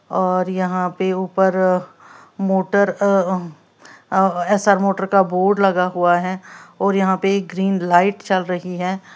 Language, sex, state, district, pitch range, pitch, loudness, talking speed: Hindi, female, Uttar Pradesh, Lalitpur, 180-195 Hz, 190 Hz, -18 LUFS, 130 wpm